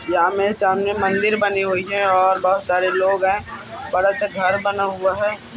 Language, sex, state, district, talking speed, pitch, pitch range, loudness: Hindi, male, Bihar, Araria, 195 wpm, 195 Hz, 190-200 Hz, -19 LUFS